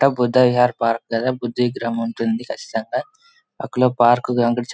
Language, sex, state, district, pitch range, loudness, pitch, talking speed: Telugu, male, Andhra Pradesh, Anantapur, 115-125 Hz, -19 LUFS, 120 Hz, 115 wpm